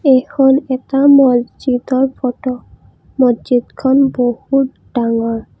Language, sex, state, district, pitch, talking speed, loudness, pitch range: Assamese, female, Assam, Kamrup Metropolitan, 260 Hz, 75 wpm, -14 LUFS, 245-270 Hz